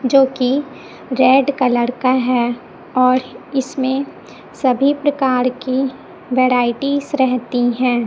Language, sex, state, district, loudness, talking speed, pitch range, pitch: Hindi, male, Chhattisgarh, Raipur, -17 LUFS, 95 wpm, 250-275 Hz, 255 Hz